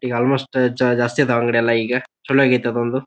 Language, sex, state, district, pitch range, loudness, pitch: Kannada, male, Karnataka, Bijapur, 120-130 Hz, -18 LUFS, 125 Hz